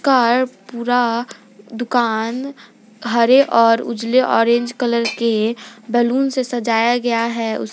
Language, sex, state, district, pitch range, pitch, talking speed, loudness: Hindi, female, Jharkhand, Garhwa, 230-245 Hz, 235 Hz, 115 wpm, -17 LUFS